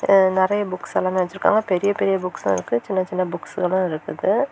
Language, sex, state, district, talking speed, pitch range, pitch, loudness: Tamil, female, Tamil Nadu, Kanyakumari, 175 wpm, 180-195 Hz, 185 Hz, -21 LUFS